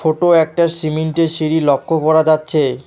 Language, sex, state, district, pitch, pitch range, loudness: Bengali, male, West Bengal, Alipurduar, 160 Hz, 155-165 Hz, -15 LUFS